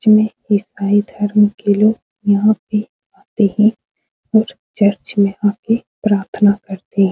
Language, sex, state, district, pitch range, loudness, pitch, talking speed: Hindi, female, Bihar, Supaul, 205-215 Hz, -16 LUFS, 210 Hz, 145 wpm